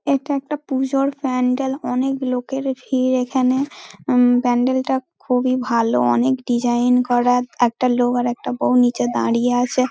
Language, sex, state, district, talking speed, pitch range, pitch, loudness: Bengali, female, West Bengal, Dakshin Dinajpur, 150 wpm, 245-265 Hz, 250 Hz, -19 LUFS